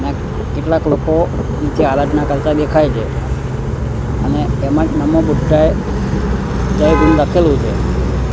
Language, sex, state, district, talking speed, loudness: Gujarati, male, Gujarat, Gandhinagar, 95 wpm, -15 LUFS